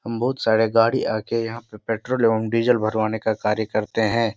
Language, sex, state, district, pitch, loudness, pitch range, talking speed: Hindi, male, Bihar, Jahanabad, 115 Hz, -21 LUFS, 110-115 Hz, 205 wpm